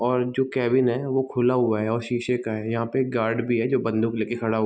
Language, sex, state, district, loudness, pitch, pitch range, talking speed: Hindi, male, Bihar, Sitamarhi, -24 LUFS, 120 Hz, 115-125 Hz, 310 wpm